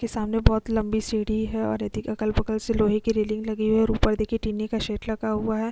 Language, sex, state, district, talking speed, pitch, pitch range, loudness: Hindi, female, Chhattisgarh, Kabirdham, 275 wpm, 220 Hz, 215-220 Hz, -25 LUFS